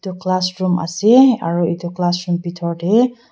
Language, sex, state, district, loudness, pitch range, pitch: Nagamese, female, Nagaland, Dimapur, -16 LUFS, 175-205 Hz, 180 Hz